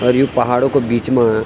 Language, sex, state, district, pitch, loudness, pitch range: Garhwali, male, Uttarakhand, Tehri Garhwal, 125 Hz, -15 LUFS, 120-130 Hz